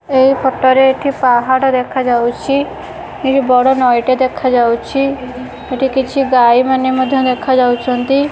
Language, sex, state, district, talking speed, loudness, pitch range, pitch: Odia, female, Odisha, Khordha, 125 wpm, -13 LUFS, 250-270 Hz, 260 Hz